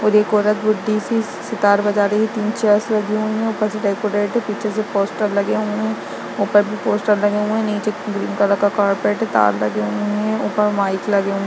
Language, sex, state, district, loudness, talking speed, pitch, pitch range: Hindi, female, Bihar, Jahanabad, -18 LUFS, 225 wpm, 210 Hz, 200-215 Hz